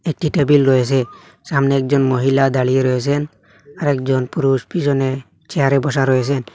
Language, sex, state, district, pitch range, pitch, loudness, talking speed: Bengali, male, Assam, Hailakandi, 130-145 Hz, 135 Hz, -17 LUFS, 130 wpm